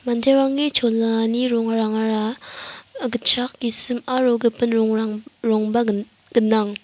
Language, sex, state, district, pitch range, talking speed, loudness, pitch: Garo, female, Meghalaya, West Garo Hills, 220-250 Hz, 95 wpm, -20 LUFS, 235 Hz